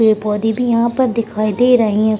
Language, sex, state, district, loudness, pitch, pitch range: Hindi, female, Bihar, Gaya, -15 LUFS, 225 Hz, 215-235 Hz